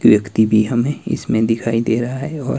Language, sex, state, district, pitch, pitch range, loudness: Hindi, male, Himachal Pradesh, Shimla, 115 Hz, 110-125 Hz, -17 LUFS